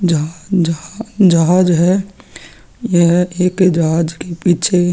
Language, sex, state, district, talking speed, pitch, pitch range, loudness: Hindi, male, Chhattisgarh, Sukma, 110 wpm, 175 Hz, 165-185 Hz, -14 LUFS